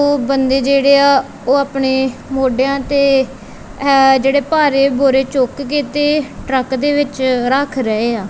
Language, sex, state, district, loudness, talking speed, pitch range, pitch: Punjabi, female, Punjab, Kapurthala, -14 LUFS, 150 wpm, 265-280 Hz, 270 Hz